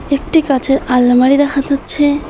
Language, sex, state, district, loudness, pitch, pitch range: Bengali, female, West Bengal, Alipurduar, -13 LUFS, 280 Hz, 270-285 Hz